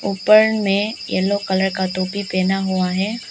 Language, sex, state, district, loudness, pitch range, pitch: Hindi, female, Arunachal Pradesh, Lower Dibang Valley, -18 LUFS, 190-205 Hz, 195 Hz